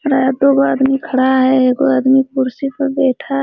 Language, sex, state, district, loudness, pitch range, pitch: Hindi, female, Bihar, Jamui, -14 LUFS, 260-275 Hz, 270 Hz